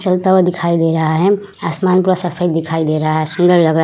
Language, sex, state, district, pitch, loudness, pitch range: Hindi, female, Uttar Pradesh, Budaun, 175 Hz, -14 LUFS, 160-185 Hz